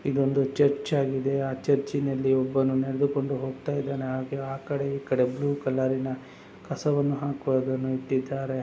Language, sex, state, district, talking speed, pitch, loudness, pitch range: Kannada, male, Karnataka, Raichur, 110 wpm, 135 Hz, -27 LUFS, 130-140 Hz